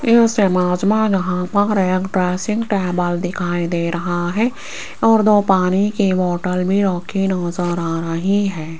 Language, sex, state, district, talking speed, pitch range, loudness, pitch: Hindi, female, Rajasthan, Jaipur, 150 wpm, 175-205 Hz, -18 LUFS, 185 Hz